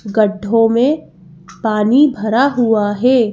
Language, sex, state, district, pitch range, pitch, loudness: Hindi, female, Madhya Pradesh, Bhopal, 210-250 Hz, 225 Hz, -14 LUFS